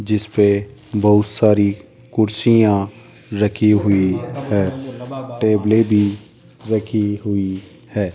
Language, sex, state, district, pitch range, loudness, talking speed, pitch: Hindi, male, Rajasthan, Jaipur, 100-110 Hz, -17 LUFS, 90 wpm, 105 Hz